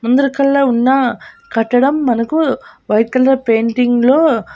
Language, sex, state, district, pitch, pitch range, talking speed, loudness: Telugu, female, Andhra Pradesh, Annamaya, 255 Hz, 235-275 Hz, 120 wpm, -14 LUFS